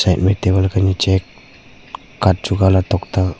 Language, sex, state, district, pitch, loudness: Hindi, male, Arunachal Pradesh, Papum Pare, 95 Hz, -16 LUFS